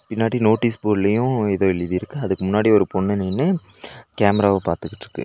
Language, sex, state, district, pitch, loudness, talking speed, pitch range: Tamil, male, Tamil Nadu, Nilgiris, 105 Hz, -20 LUFS, 135 wpm, 95-115 Hz